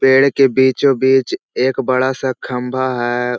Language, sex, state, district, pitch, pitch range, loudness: Hindi, male, Bihar, Jahanabad, 130 Hz, 125-135 Hz, -15 LUFS